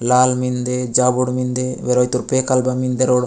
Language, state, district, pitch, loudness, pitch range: Gondi, Chhattisgarh, Sukma, 125 Hz, -18 LUFS, 125-130 Hz